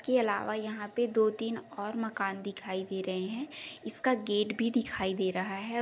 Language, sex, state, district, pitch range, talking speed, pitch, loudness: Hindi, female, Bihar, Samastipur, 195-240 Hz, 195 wpm, 215 Hz, -33 LUFS